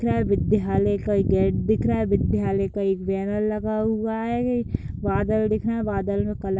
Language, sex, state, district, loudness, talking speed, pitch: Hindi, female, Bihar, Gopalganj, -23 LUFS, 220 wpm, 195 Hz